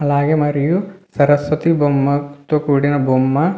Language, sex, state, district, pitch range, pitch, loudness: Telugu, male, Andhra Pradesh, Visakhapatnam, 140-155 Hz, 145 Hz, -16 LUFS